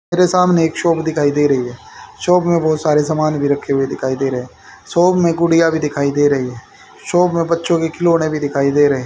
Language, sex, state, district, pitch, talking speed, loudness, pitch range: Hindi, male, Haryana, Charkhi Dadri, 155 Hz, 225 wpm, -15 LUFS, 140-170 Hz